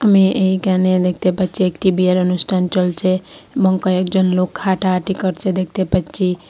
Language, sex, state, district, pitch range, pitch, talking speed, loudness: Bengali, female, Assam, Hailakandi, 185-190 Hz, 185 Hz, 140 wpm, -17 LUFS